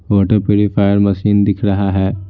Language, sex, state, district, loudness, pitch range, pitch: Hindi, male, Bihar, Patna, -14 LUFS, 100-105 Hz, 100 Hz